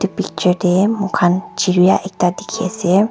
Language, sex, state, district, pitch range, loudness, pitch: Nagamese, male, Nagaland, Kohima, 180-200 Hz, -16 LUFS, 185 Hz